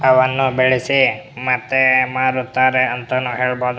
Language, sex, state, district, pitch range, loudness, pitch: Kannada, male, Karnataka, Bellary, 125-130 Hz, -16 LUFS, 130 Hz